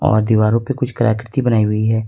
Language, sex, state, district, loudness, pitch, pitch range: Hindi, male, Jharkhand, Ranchi, -16 LUFS, 110 Hz, 110-125 Hz